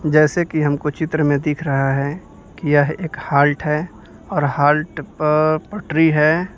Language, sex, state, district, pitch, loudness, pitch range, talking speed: Hindi, male, Bihar, Kaimur, 150 Hz, -18 LUFS, 145-160 Hz, 165 wpm